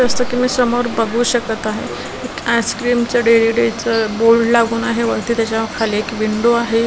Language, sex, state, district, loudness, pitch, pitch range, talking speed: Marathi, female, Maharashtra, Washim, -16 LUFS, 230 Hz, 225-240 Hz, 185 wpm